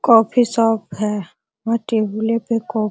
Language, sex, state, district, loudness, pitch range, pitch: Hindi, female, Bihar, Araria, -19 LUFS, 210-230 Hz, 225 Hz